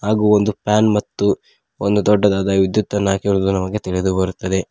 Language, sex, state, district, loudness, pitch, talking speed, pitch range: Kannada, male, Karnataka, Koppal, -17 LUFS, 100 Hz, 155 wpm, 95-105 Hz